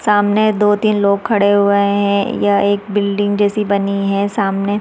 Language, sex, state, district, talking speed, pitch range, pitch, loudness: Hindi, female, Chhattisgarh, Raigarh, 175 wpm, 200-210 Hz, 205 Hz, -15 LUFS